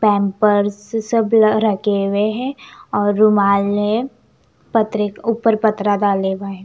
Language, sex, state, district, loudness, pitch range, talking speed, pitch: Hindi, female, Chandigarh, Chandigarh, -17 LUFS, 205-225 Hz, 145 wpm, 210 Hz